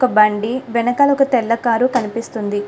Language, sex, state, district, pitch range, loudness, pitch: Telugu, female, Andhra Pradesh, Krishna, 215-250 Hz, -17 LUFS, 235 Hz